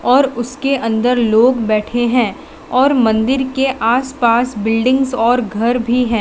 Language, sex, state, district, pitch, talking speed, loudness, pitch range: Hindi, female, Gujarat, Valsad, 245 Hz, 155 wpm, -15 LUFS, 230-260 Hz